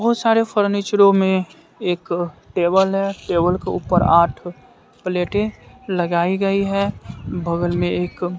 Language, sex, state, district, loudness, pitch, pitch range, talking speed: Hindi, female, Bihar, West Champaran, -19 LUFS, 185 Hz, 175-200 Hz, 130 wpm